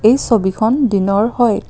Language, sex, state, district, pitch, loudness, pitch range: Assamese, female, Assam, Kamrup Metropolitan, 225 Hz, -15 LUFS, 200-240 Hz